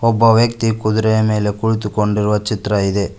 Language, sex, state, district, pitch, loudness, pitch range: Kannada, male, Karnataka, Koppal, 110 Hz, -16 LUFS, 105-110 Hz